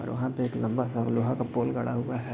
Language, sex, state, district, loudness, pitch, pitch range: Hindi, male, Bihar, East Champaran, -29 LUFS, 125 Hz, 120-125 Hz